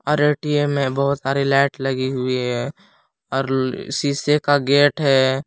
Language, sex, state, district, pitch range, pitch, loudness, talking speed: Hindi, male, Jharkhand, Palamu, 130-145 Hz, 140 Hz, -19 LUFS, 165 wpm